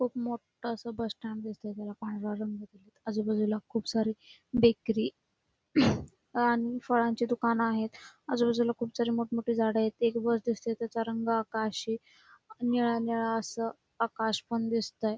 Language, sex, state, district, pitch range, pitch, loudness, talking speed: Marathi, female, Karnataka, Belgaum, 220-235 Hz, 230 Hz, -31 LUFS, 140 wpm